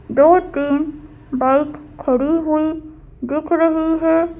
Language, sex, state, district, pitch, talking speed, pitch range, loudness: Hindi, female, Madhya Pradesh, Bhopal, 310 Hz, 95 wpm, 285-325 Hz, -17 LUFS